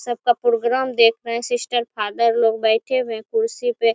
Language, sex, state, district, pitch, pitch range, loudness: Hindi, female, Chhattisgarh, Korba, 235 Hz, 230-250 Hz, -20 LUFS